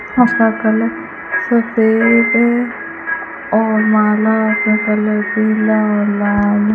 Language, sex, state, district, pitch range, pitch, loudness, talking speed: Hindi, female, Rajasthan, Bikaner, 210-230 Hz, 215 Hz, -14 LUFS, 115 wpm